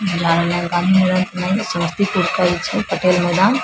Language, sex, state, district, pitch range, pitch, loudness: Maithili, female, Bihar, Samastipur, 175-190 Hz, 180 Hz, -17 LUFS